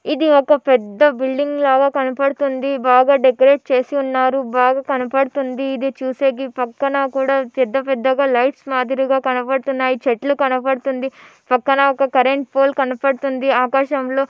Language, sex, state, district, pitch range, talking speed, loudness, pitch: Telugu, female, Andhra Pradesh, Anantapur, 260-275 Hz, 120 wpm, -17 LUFS, 270 Hz